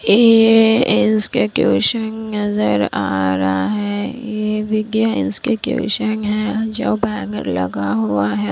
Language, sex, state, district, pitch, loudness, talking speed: Hindi, female, Bihar, Kishanganj, 210 Hz, -17 LUFS, 105 wpm